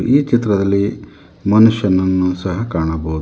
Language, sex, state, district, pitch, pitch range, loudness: Kannada, male, Karnataka, Bangalore, 100 Hz, 90-110 Hz, -16 LUFS